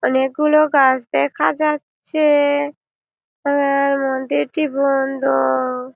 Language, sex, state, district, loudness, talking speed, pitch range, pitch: Bengali, female, West Bengal, Malda, -17 LUFS, 90 wpm, 260-290 Hz, 275 Hz